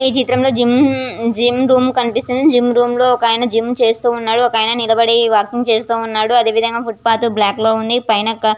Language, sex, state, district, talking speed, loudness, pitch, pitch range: Telugu, female, Andhra Pradesh, Visakhapatnam, 145 wpm, -14 LUFS, 235 Hz, 225-245 Hz